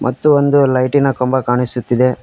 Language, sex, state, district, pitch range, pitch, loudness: Kannada, male, Karnataka, Koppal, 125-140 Hz, 130 Hz, -14 LUFS